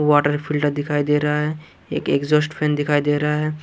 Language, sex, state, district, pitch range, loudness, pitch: Hindi, male, Punjab, Kapurthala, 145-150 Hz, -20 LUFS, 150 Hz